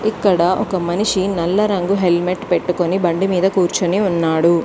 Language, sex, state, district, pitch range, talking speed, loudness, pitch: Telugu, female, Telangana, Mahabubabad, 175-195 Hz, 130 wpm, -17 LUFS, 185 Hz